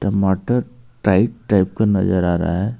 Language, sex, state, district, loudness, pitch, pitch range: Hindi, male, Jharkhand, Ranchi, -18 LUFS, 100 Hz, 95-115 Hz